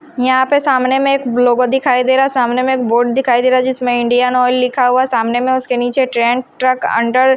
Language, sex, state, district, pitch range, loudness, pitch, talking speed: Hindi, female, Himachal Pradesh, Shimla, 245-260 Hz, -13 LUFS, 255 Hz, 230 wpm